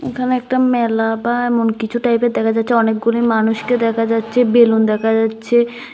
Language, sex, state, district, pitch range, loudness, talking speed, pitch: Bengali, female, Tripura, West Tripura, 225-240 Hz, -16 LUFS, 160 wpm, 230 Hz